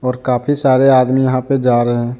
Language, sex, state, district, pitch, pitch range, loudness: Hindi, male, Jharkhand, Deoghar, 130 Hz, 125-130 Hz, -14 LUFS